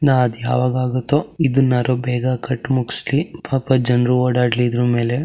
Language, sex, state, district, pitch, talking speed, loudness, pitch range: Kannada, male, Karnataka, Shimoga, 125 Hz, 125 wpm, -18 LUFS, 125-135 Hz